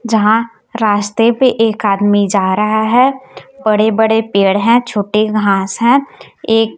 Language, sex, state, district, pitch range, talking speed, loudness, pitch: Hindi, female, Chhattisgarh, Raipur, 205-230 Hz, 140 wpm, -13 LUFS, 220 Hz